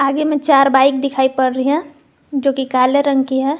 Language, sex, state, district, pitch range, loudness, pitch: Hindi, female, Jharkhand, Garhwa, 265-285 Hz, -15 LUFS, 275 Hz